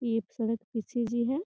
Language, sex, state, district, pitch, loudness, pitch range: Hindi, female, Bihar, Gopalganj, 235 Hz, -32 LUFS, 225-240 Hz